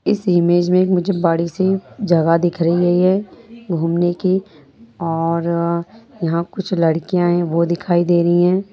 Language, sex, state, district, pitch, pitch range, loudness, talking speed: Hindi, female, Bihar, Sitamarhi, 175 Hz, 170-185 Hz, -17 LUFS, 160 wpm